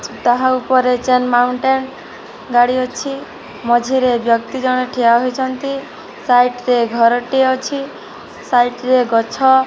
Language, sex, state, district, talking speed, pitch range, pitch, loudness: Odia, female, Odisha, Nuapada, 110 wpm, 245-260 Hz, 250 Hz, -15 LUFS